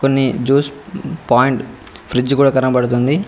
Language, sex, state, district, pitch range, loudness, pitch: Telugu, male, Telangana, Mahabubabad, 125-140 Hz, -15 LUFS, 135 Hz